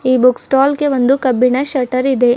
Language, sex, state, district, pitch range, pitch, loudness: Kannada, female, Karnataka, Bidar, 250-270 Hz, 255 Hz, -14 LUFS